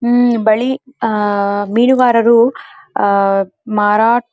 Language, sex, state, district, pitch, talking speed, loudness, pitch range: Kannada, female, Karnataka, Dharwad, 230 Hz, 70 wpm, -13 LUFS, 205-245 Hz